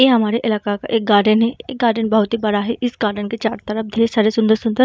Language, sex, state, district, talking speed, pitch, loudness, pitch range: Hindi, female, Bihar, Vaishali, 270 wpm, 225 Hz, -18 LUFS, 215-230 Hz